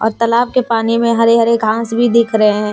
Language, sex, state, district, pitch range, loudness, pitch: Hindi, female, Jharkhand, Deoghar, 220-235 Hz, -13 LUFS, 230 Hz